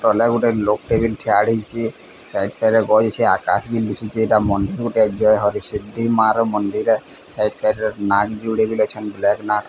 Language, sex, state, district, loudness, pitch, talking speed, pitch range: Odia, male, Odisha, Sambalpur, -18 LUFS, 110 Hz, 165 wpm, 105-115 Hz